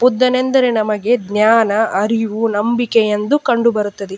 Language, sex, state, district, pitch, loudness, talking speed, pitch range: Kannada, female, Karnataka, Dakshina Kannada, 225 Hz, -15 LUFS, 115 wpm, 210-245 Hz